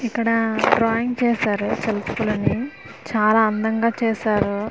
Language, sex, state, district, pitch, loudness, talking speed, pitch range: Telugu, female, Andhra Pradesh, Manyam, 220 Hz, -20 LUFS, 100 wpm, 210-230 Hz